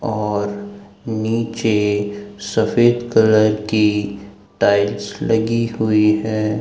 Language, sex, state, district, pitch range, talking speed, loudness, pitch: Hindi, male, Madhya Pradesh, Dhar, 105-110 Hz, 80 wpm, -18 LUFS, 105 Hz